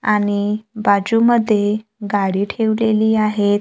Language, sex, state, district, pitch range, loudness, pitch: Marathi, female, Maharashtra, Gondia, 205-220 Hz, -17 LUFS, 210 Hz